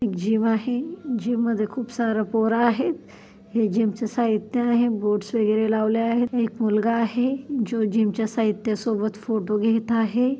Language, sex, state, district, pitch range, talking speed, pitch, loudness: Marathi, female, Maharashtra, Chandrapur, 215-240 Hz, 140 wpm, 225 Hz, -23 LUFS